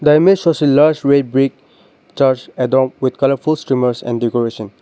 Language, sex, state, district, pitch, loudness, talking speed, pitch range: English, male, Nagaland, Dimapur, 135 Hz, -15 LUFS, 175 wpm, 125-150 Hz